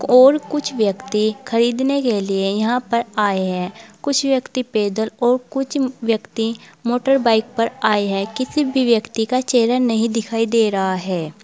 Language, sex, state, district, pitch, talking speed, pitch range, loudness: Hindi, female, Uttar Pradesh, Saharanpur, 230 Hz, 155 wpm, 215-255 Hz, -19 LUFS